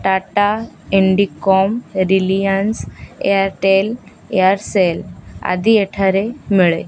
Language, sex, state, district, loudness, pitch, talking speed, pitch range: Odia, female, Odisha, Khordha, -16 LUFS, 195 Hz, 70 wpm, 190-205 Hz